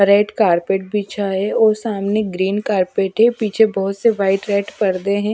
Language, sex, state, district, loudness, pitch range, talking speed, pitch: Hindi, female, Chhattisgarh, Raipur, -17 LUFS, 195-215 Hz, 180 wpm, 200 Hz